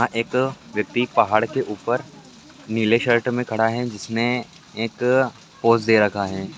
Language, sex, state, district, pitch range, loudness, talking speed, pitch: Angika, male, Bihar, Madhepura, 110-125 Hz, -21 LUFS, 155 wpm, 115 Hz